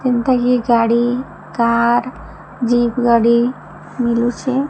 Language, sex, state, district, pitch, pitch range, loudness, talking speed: Odia, female, Odisha, Sambalpur, 240 Hz, 235-250 Hz, -16 LUFS, 90 wpm